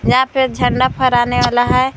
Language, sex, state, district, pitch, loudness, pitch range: Hindi, female, Uttar Pradesh, Lucknow, 255 Hz, -14 LUFS, 245-260 Hz